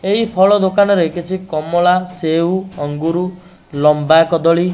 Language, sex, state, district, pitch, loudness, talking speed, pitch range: Odia, male, Odisha, Nuapada, 175 Hz, -15 LUFS, 125 wpm, 165-190 Hz